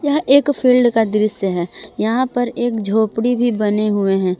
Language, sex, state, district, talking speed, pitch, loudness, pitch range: Hindi, female, Jharkhand, Palamu, 190 wpm, 225 Hz, -17 LUFS, 210-245 Hz